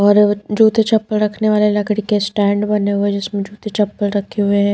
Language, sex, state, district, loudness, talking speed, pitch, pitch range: Hindi, female, Bihar, Patna, -16 LUFS, 215 wpm, 210 Hz, 205-210 Hz